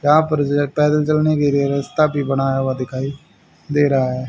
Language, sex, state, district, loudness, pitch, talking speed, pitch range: Hindi, male, Haryana, Rohtak, -18 LUFS, 145 Hz, 140 wpm, 135-150 Hz